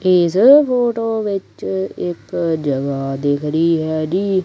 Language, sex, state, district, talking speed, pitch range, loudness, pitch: Punjabi, male, Punjab, Kapurthala, 110 wpm, 155-195 Hz, -17 LUFS, 175 Hz